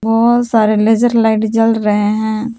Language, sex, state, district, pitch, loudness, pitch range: Hindi, female, Jharkhand, Palamu, 225 Hz, -13 LUFS, 215-230 Hz